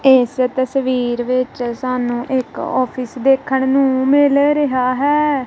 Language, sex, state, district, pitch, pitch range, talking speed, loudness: Punjabi, female, Punjab, Kapurthala, 260 Hz, 250-270 Hz, 120 wpm, -16 LUFS